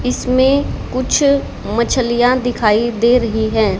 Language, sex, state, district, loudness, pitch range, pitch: Hindi, female, Haryana, Charkhi Dadri, -15 LUFS, 225-255 Hz, 245 Hz